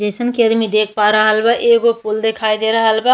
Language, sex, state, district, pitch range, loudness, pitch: Bhojpuri, female, Uttar Pradesh, Ghazipur, 215-235 Hz, -14 LUFS, 225 Hz